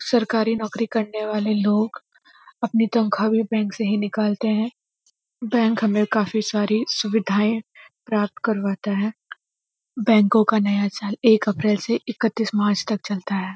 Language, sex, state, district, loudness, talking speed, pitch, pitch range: Hindi, female, Uttarakhand, Uttarkashi, -21 LUFS, 145 wpm, 215 Hz, 210-225 Hz